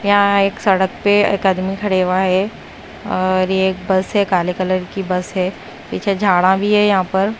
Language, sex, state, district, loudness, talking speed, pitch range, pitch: Hindi, female, Punjab, Kapurthala, -16 LUFS, 205 wpm, 185-200 Hz, 190 Hz